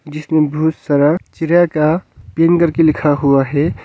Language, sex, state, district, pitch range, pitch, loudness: Hindi, male, Arunachal Pradesh, Longding, 145-165 Hz, 155 Hz, -14 LUFS